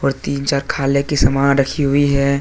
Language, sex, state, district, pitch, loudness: Hindi, male, Jharkhand, Deoghar, 140 Hz, -16 LUFS